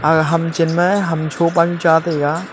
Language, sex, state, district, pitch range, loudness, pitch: Wancho, male, Arunachal Pradesh, Longding, 160-170 Hz, -16 LUFS, 165 Hz